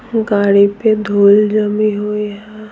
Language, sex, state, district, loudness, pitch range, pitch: Hindi, female, Bihar, Patna, -13 LUFS, 205-215 Hz, 210 Hz